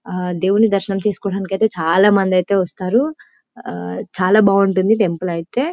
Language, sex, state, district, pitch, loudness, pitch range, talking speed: Telugu, female, Telangana, Karimnagar, 195 Hz, -17 LUFS, 185-210 Hz, 125 wpm